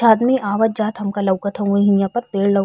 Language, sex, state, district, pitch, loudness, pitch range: Bhojpuri, female, Uttar Pradesh, Ghazipur, 205 Hz, -18 LUFS, 200-225 Hz